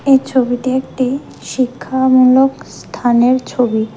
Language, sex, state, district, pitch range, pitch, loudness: Bengali, female, Tripura, West Tripura, 245-260 Hz, 255 Hz, -14 LUFS